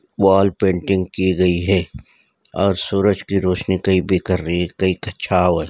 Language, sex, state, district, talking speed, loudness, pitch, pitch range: Hindi, male, Uttarakhand, Uttarkashi, 170 wpm, -18 LUFS, 95 Hz, 90-95 Hz